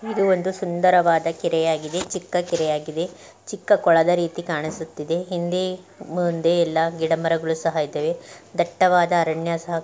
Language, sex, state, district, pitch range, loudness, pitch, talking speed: Kannada, female, Karnataka, Gulbarga, 165-180 Hz, -22 LUFS, 170 Hz, 115 wpm